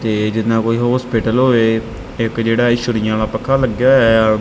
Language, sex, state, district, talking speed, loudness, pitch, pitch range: Punjabi, male, Punjab, Kapurthala, 205 wpm, -15 LUFS, 115 Hz, 110-120 Hz